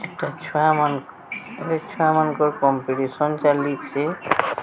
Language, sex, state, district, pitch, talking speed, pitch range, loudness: Odia, male, Odisha, Sambalpur, 150 Hz, 90 wpm, 140-155 Hz, -22 LUFS